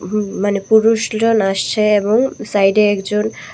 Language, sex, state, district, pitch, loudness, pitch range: Bengali, female, Tripura, West Tripura, 210 Hz, -15 LUFS, 205-220 Hz